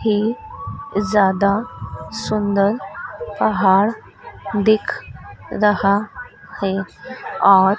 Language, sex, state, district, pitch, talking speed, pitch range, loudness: Hindi, female, Madhya Pradesh, Dhar, 205 Hz, 60 wpm, 195-215 Hz, -19 LUFS